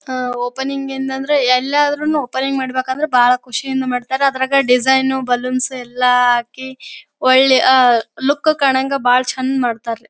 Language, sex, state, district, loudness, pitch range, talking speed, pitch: Kannada, female, Karnataka, Bellary, -15 LUFS, 250-270 Hz, 130 wpm, 260 Hz